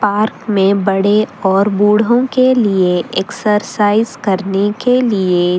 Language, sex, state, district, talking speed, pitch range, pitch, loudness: Hindi, female, Delhi, New Delhi, 120 wpm, 195-215 Hz, 205 Hz, -14 LUFS